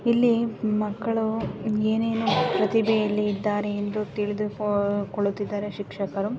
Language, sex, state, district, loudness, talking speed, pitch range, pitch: Kannada, female, Karnataka, Dharwad, -25 LUFS, 85 wpm, 205-220 Hz, 210 Hz